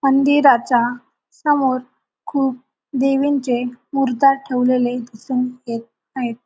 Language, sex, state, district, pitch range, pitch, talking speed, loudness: Marathi, female, Maharashtra, Sindhudurg, 245-275 Hz, 255 Hz, 85 wpm, -18 LUFS